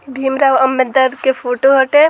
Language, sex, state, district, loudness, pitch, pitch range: Bhojpuri, female, Bihar, Muzaffarpur, -13 LUFS, 265 Hz, 260-270 Hz